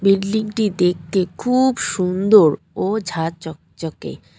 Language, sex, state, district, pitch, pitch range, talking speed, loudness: Bengali, female, West Bengal, Cooch Behar, 195 Hz, 180-215 Hz, 95 wpm, -18 LUFS